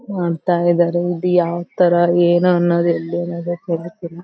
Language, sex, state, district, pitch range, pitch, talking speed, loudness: Kannada, female, Karnataka, Belgaum, 170-175 Hz, 175 Hz, 115 wpm, -17 LUFS